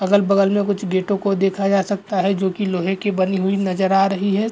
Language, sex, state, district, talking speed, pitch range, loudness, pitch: Hindi, male, Goa, North and South Goa, 250 wpm, 190-200 Hz, -19 LUFS, 195 Hz